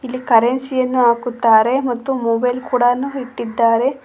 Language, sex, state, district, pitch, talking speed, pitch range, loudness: Kannada, female, Karnataka, Koppal, 250 Hz, 120 wpm, 235-255 Hz, -16 LUFS